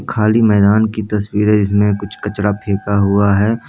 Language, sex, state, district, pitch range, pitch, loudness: Hindi, male, Bihar, Jamui, 100-105 Hz, 105 Hz, -14 LUFS